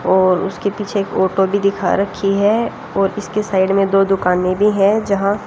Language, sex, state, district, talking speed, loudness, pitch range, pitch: Hindi, female, Haryana, Jhajjar, 210 wpm, -16 LUFS, 190-200 Hz, 195 Hz